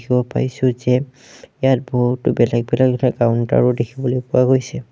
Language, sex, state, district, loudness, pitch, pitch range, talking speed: Assamese, male, Assam, Sonitpur, -18 LUFS, 125 Hz, 120-130 Hz, 145 wpm